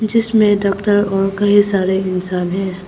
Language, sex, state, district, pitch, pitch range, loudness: Hindi, female, Arunachal Pradesh, Papum Pare, 195 Hz, 190-205 Hz, -15 LUFS